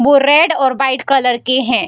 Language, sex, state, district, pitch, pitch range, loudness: Hindi, female, Bihar, Darbhanga, 270 Hz, 260-285 Hz, -12 LUFS